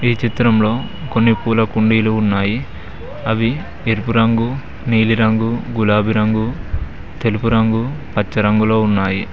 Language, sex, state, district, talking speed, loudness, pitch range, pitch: Telugu, male, Telangana, Mahabubabad, 110 wpm, -17 LUFS, 105-115 Hz, 110 Hz